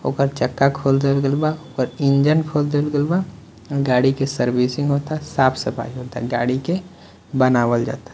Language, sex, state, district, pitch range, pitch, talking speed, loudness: Bhojpuri, male, Bihar, Muzaffarpur, 125-145 Hz, 135 Hz, 170 wpm, -20 LUFS